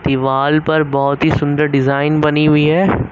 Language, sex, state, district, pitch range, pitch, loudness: Hindi, male, Uttar Pradesh, Lucknow, 140-155 Hz, 150 Hz, -14 LUFS